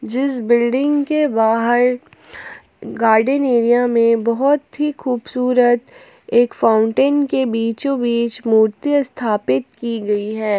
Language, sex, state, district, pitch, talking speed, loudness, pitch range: Hindi, female, Jharkhand, Palamu, 240 Hz, 115 wpm, -17 LUFS, 230-275 Hz